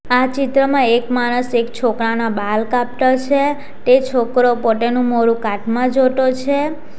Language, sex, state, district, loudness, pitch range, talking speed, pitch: Gujarati, female, Gujarat, Valsad, -16 LUFS, 235-265 Hz, 145 wpm, 250 Hz